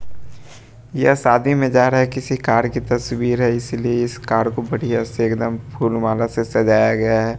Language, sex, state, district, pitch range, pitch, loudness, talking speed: Hindi, male, Bihar, West Champaran, 115-125 Hz, 120 Hz, -18 LUFS, 195 wpm